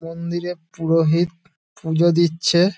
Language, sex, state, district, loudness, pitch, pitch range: Bengali, male, West Bengal, Dakshin Dinajpur, -20 LUFS, 170 Hz, 165-175 Hz